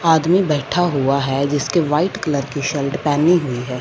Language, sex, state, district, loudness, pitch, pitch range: Hindi, female, Punjab, Fazilka, -18 LUFS, 145 Hz, 140-165 Hz